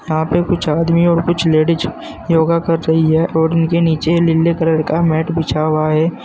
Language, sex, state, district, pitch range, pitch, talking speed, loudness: Hindi, male, Uttar Pradesh, Saharanpur, 160-170 Hz, 165 Hz, 200 wpm, -15 LUFS